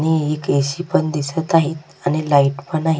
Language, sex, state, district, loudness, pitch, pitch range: Marathi, female, Maharashtra, Sindhudurg, -19 LUFS, 155 Hz, 140-160 Hz